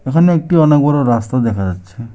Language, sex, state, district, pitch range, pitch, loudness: Bengali, male, West Bengal, Alipurduar, 115-155 Hz, 130 Hz, -13 LUFS